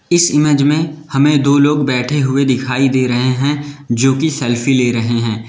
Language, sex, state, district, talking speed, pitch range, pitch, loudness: Hindi, male, Uttar Pradesh, Lalitpur, 195 wpm, 125-145 Hz, 135 Hz, -14 LUFS